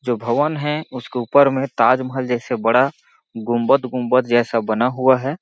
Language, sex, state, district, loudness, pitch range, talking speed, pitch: Hindi, male, Chhattisgarh, Balrampur, -18 LUFS, 120-135 Hz, 155 wpm, 125 Hz